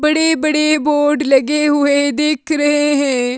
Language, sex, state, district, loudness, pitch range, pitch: Hindi, female, Himachal Pradesh, Shimla, -14 LUFS, 285-300 Hz, 295 Hz